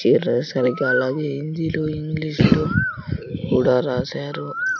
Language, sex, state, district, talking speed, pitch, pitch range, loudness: Telugu, male, Andhra Pradesh, Sri Satya Sai, 100 wpm, 155 Hz, 140-165 Hz, -21 LUFS